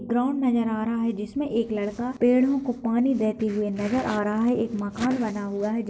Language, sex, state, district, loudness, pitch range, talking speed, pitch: Hindi, female, Uttar Pradesh, Gorakhpur, -25 LUFS, 210-245 Hz, 245 wpm, 230 Hz